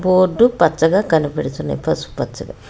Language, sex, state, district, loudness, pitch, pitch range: Telugu, female, Telangana, Hyderabad, -17 LUFS, 185 Hz, 160-195 Hz